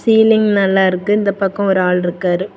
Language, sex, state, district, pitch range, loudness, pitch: Tamil, female, Tamil Nadu, Kanyakumari, 185-210 Hz, -14 LUFS, 195 Hz